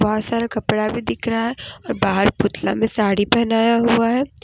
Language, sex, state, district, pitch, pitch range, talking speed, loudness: Hindi, female, Jharkhand, Deoghar, 230 Hz, 215-235 Hz, 205 wpm, -19 LUFS